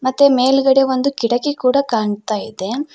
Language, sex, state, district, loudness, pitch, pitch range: Kannada, female, Karnataka, Koppal, -16 LUFS, 260 Hz, 230-275 Hz